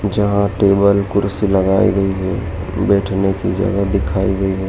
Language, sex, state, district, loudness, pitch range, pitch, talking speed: Hindi, male, Madhya Pradesh, Dhar, -16 LUFS, 95-100 Hz, 100 Hz, 155 wpm